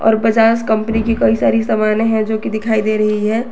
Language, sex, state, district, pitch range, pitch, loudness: Hindi, female, Jharkhand, Garhwa, 215-225 Hz, 220 Hz, -15 LUFS